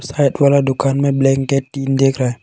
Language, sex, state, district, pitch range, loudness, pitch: Hindi, male, Arunachal Pradesh, Longding, 135-140 Hz, -15 LUFS, 135 Hz